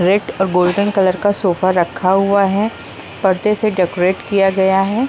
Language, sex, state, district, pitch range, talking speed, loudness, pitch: Hindi, female, Bihar, Saran, 185-200 Hz, 175 wpm, -15 LUFS, 190 Hz